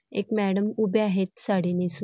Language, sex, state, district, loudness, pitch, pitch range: Marathi, female, Karnataka, Belgaum, -25 LUFS, 200 Hz, 190-215 Hz